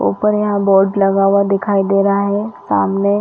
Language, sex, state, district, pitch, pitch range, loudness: Hindi, female, Chhattisgarh, Rajnandgaon, 200 Hz, 195-205 Hz, -14 LUFS